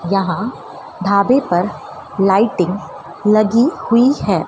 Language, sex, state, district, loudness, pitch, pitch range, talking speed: Hindi, female, Madhya Pradesh, Dhar, -16 LUFS, 200 Hz, 190-235 Hz, 95 wpm